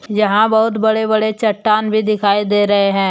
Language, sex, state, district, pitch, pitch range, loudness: Hindi, male, Jharkhand, Deoghar, 215 Hz, 205-220 Hz, -15 LUFS